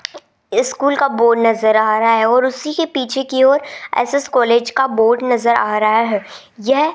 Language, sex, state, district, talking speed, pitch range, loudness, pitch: Hindi, female, Rajasthan, Jaipur, 190 wpm, 225-280 Hz, -15 LUFS, 250 Hz